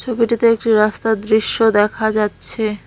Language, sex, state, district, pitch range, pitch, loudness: Bengali, female, West Bengal, Cooch Behar, 215-230 Hz, 220 Hz, -16 LUFS